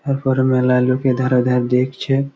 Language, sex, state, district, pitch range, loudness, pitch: Bengali, male, West Bengal, Malda, 125-135 Hz, -17 LUFS, 130 Hz